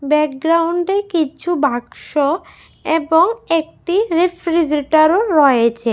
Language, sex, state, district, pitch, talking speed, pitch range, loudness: Bengali, female, Tripura, West Tripura, 325 Hz, 70 wpm, 300-345 Hz, -16 LUFS